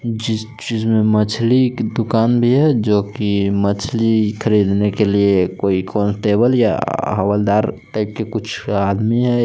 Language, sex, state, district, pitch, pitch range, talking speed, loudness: Hindi, male, Jharkhand, Palamu, 110 Hz, 100-115 Hz, 125 wpm, -17 LUFS